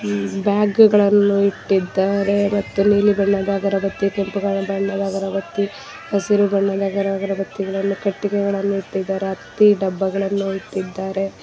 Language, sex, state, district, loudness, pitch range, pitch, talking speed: Kannada, female, Karnataka, Bangalore, -19 LUFS, 195-200 Hz, 195 Hz, 95 wpm